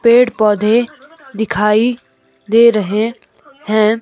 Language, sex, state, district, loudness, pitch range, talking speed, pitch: Hindi, female, Himachal Pradesh, Shimla, -14 LUFS, 215-245 Hz, 90 wpm, 225 Hz